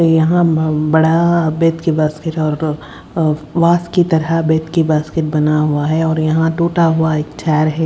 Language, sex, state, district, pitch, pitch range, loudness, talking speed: Hindi, female, Haryana, Rohtak, 160 Hz, 155-165 Hz, -15 LUFS, 100 wpm